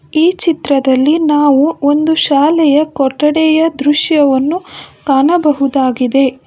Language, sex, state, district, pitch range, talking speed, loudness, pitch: Kannada, female, Karnataka, Bangalore, 275-320 Hz, 75 wpm, -11 LUFS, 295 Hz